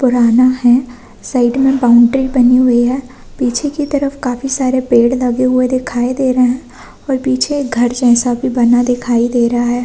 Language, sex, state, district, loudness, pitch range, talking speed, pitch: Hindi, female, Chhattisgarh, Korba, -13 LUFS, 245-260 Hz, 185 wpm, 250 Hz